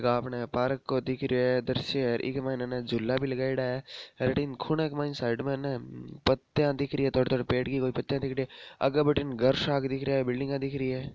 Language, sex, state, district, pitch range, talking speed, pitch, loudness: Marwari, male, Rajasthan, Nagaur, 125-140 Hz, 265 wpm, 130 Hz, -29 LUFS